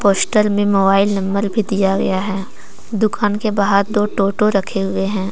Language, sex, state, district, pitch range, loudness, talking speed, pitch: Hindi, female, Jharkhand, Deoghar, 195-210 Hz, -17 LUFS, 180 wpm, 200 Hz